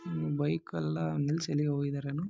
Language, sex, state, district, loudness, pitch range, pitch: Kannada, male, Karnataka, Bellary, -32 LUFS, 140-155 Hz, 145 Hz